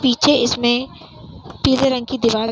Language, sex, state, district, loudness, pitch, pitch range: Hindi, female, Uttar Pradesh, Hamirpur, -17 LUFS, 250 Hz, 240-265 Hz